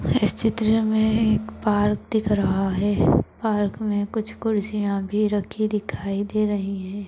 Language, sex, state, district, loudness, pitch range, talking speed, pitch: Hindi, female, Maharashtra, Aurangabad, -23 LUFS, 200-220 Hz, 150 wpm, 210 Hz